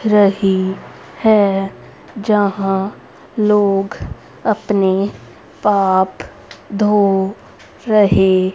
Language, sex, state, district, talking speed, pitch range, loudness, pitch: Hindi, female, Haryana, Rohtak, 55 wpm, 195-210 Hz, -16 LUFS, 200 Hz